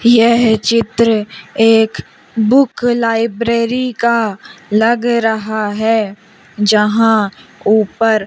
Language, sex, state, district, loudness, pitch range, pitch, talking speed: Hindi, female, Madhya Pradesh, Umaria, -13 LUFS, 215-235 Hz, 225 Hz, 80 wpm